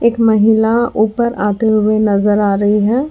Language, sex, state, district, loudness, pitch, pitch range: Hindi, female, Karnataka, Bangalore, -13 LUFS, 215 Hz, 210-230 Hz